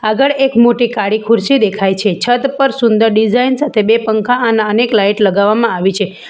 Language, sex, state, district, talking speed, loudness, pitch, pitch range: Gujarati, female, Gujarat, Valsad, 190 wpm, -12 LUFS, 225 Hz, 210-245 Hz